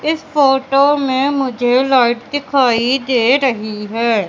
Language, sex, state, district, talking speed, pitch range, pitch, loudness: Hindi, female, Madhya Pradesh, Katni, 125 wpm, 240-275 Hz, 265 Hz, -14 LUFS